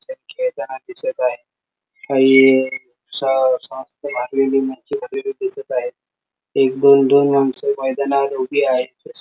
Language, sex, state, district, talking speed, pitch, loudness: Marathi, male, Maharashtra, Sindhudurg, 100 wpm, 140 Hz, -17 LUFS